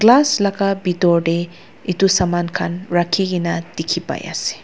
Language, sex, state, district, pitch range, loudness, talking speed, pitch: Nagamese, female, Nagaland, Dimapur, 170-195 Hz, -18 LUFS, 155 wpm, 175 Hz